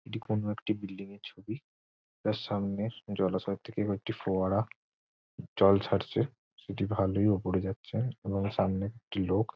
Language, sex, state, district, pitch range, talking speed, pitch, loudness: Bengali, male, West Bengal, Jhargram, 95-110 Hz, 140 wpm, 100 Hz, -32 LUFS